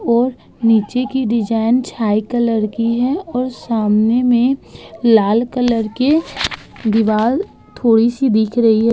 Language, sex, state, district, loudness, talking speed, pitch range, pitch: Hindi, female, Uttar Pradesh, Budaun, -16 LUFS, 140 wpm, 225-250 Hz, 235 Hz